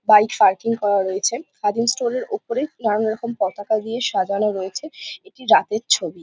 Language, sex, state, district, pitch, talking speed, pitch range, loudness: Bengali, female, West Bengal, Jhargram, 220 Hz, 165 wpm, 205-255 Hz, -20 LUFS